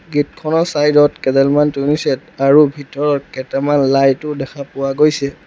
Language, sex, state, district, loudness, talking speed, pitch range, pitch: Assamese, male, Assam, Sonitpur, -15 LUFS, 165 wpm, 135-150 Hz, 145 Hz